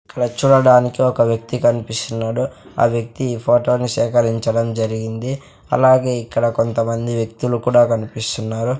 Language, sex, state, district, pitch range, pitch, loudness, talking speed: Telugu, male, Andhra Pradesh, Sri Satya Sai, 115-125 Hz, 115 Hz, -17 LUFS, 125 wpm